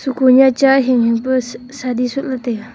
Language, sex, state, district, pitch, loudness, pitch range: Wancho, female, Arunachal Pradesh, Longding, 255 Hz, -14 LUFS, 245-265 Hz